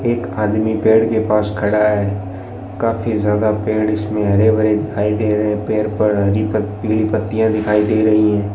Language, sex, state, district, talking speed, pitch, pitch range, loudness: Hindi, male, Rajasthan, Bikaner, 180 wpm, 105 Hz, 105-110 Hz, -16 LUFS